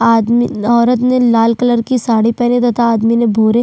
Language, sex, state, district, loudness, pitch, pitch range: Hindi, female, Chhattisgarh, Sukma, -12 LUFS, 235 Hz, 230-240 Hz